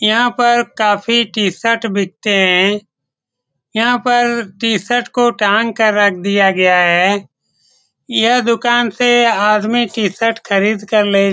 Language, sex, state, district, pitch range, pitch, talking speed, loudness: Hindi, male, Bihar, Saran, 200-235 Hz, 215 Hz, 125 wpm, -13 LUFS